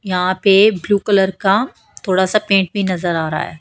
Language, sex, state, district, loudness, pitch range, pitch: Hindi, female, Haryana, Charkhi Dadri, -15 LUFS, 185-205 Hz, 195 Hz